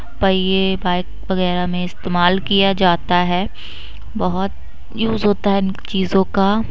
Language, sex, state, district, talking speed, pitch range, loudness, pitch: Hindi, female, Uttar Pradesh, Budaun, 125 wpm, 180-195 Hz, -18 LUFS, 190 Hz